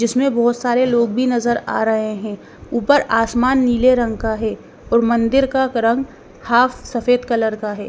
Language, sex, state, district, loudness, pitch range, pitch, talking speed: Hindi, female, Bihar, Patna, -17 LUFS, 225-255 Hz, 235 Hz, 185 wpm